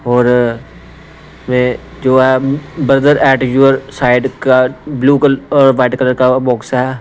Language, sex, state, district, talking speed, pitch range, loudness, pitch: Hindi, male, Punjab, Pathankot, 135 wpm, 125-135 Hz, -12 LUFS, 130 Hz